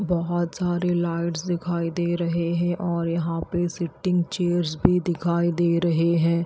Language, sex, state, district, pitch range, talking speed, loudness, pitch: Hindi, female, Haryana, Rohtak, 170-175 Hz, 160 wpm, -24 LUFS, 170 Hz